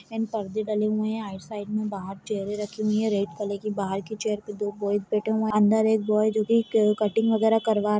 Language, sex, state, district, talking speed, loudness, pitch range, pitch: Hindi, female, Chhattisgarh, Balrampur, 245 wpm, -25 LUFS, 205-220 Hz, 215 Hz